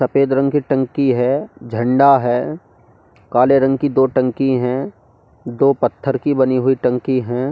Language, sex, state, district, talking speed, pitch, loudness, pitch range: Hindi, male, Delhi, New Delhi, 160 wpm, 130 Hz, -16 LUFS, 125-135 Hz